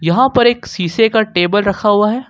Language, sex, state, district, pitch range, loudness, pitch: Hindi, male, Jharkhand, Ranchi, 190-240 Hz, -13 LUFS, 210 Hz